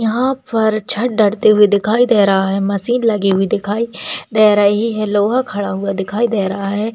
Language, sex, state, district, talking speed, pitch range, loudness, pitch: Hindi, female, Rajasthan, Nagaur, 200 wpm, 200-230 Hz, -15 LUFS, 210 Hz